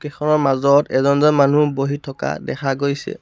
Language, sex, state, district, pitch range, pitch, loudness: Assamese, male, Assam, Sonitpur, 135-150 Hz, 140 Hz, -17 LUFS